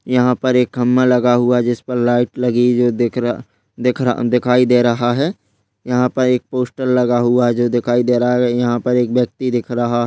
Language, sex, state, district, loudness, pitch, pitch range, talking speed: Hindi, male, Rajasthan, Nagaur, -16 LUFS, 125 Hz, 120-125 Hz, 225 wpm